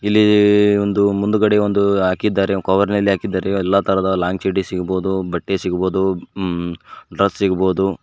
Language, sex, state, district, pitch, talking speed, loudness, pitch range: Kannada, male, Karnataka, Koppal, 95 Hz, 140 wpm, -17 LUFS, 95-100 Hz